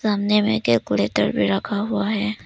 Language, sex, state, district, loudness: Hindi, female, Arunachal Pradesh, Papum Pare, -21 LUFS